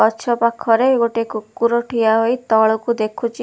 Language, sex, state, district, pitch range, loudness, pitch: Odia, female, Odisha, Khordha, 220-235 Hz, -17 LUFS, 230 Hz